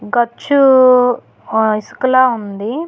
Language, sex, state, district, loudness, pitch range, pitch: Telugu, female, Telangana, Hyderabad, -13 LUFS, 220-260 Hz, 245 Hz